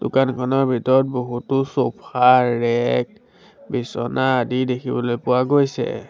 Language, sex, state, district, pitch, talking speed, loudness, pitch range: Assamese, male, Assam, Sonitpur, 125 Hz, 100 wpm, -20 LUFS, 125-135 Hz